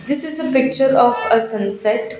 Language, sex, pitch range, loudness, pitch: English, female, 220-270 Hz, -16 LUFS, 245 Hz